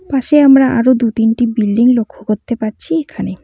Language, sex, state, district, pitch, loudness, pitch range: Bengali, female, West Bengal, Cooch Behar, 235 Hz, -13 LUFS, 220-270 Hz